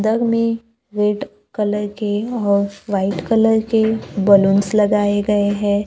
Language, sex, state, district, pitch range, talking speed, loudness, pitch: Hindi, female, Maharashtra, Gondia, 205-220 Hz, 135 wpm, -17 LUFS, 210 Hz